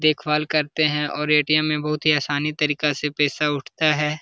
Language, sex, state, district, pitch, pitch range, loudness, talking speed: Hindi, male, Uttar Pradesh, Jalaun, 150 Hz, 150-155 Hz, -21 LUFS, 215 wpm